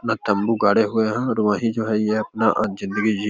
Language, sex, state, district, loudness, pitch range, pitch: Hindi, male, Bihar, Begusarai, -20 LUFS, 105-110 Hz, 110 Hz